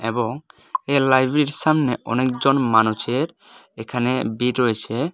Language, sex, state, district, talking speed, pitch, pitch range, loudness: Bengali, male, Tripura, West Tripura, 105 wpm, 130 Hz, 115-140 Hz, -19 LUFS